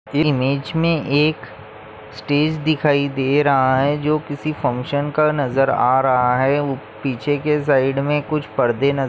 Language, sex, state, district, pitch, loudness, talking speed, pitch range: Hindi, male, Maharashtra, Chandrapur, 140 Hz, -18 LUFS, 150 wpm, 130-150 Hz